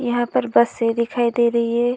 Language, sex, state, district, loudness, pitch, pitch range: Hindi, female, Uttar Pradesh, Hamirpur, -19 LUFS, 235 Hz, 230-240 Hz